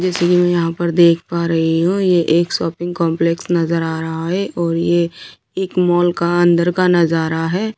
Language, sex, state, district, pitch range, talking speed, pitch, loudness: Hindi, female, Delhi, New Delhi, 165-175 Hz, 200 wpm, 170 Hz, -16 LUFS